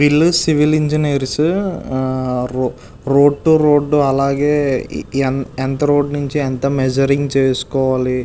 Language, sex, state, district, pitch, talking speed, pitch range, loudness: Telugu, male, Andhra Pradesh, Visakhapatnam, 140 Hz, 100 wpm, 130-145 Hz, -16 LUFS